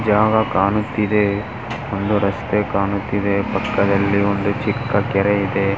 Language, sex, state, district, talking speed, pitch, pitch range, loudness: Kannada, male, Karnataka, Dharwad, 105 wpm, 100 Hz, 100-105 Hz, -19 LUFS